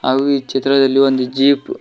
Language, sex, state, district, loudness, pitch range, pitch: Kannada, male, Karnataka, Koppal, -15 LUFS, 135-140 Hz, 135 Hz